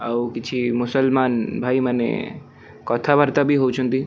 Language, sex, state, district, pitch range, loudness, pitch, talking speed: Odia, male, Odisha, Khordha, 120-135 Hz, -20 LUFS, 125 Hz, 120 wpm